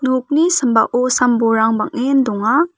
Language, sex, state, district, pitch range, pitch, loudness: Garo, female, Meghalaya, West Garo Hills, 225-275 Hz, 250 Hz, -15 LUFS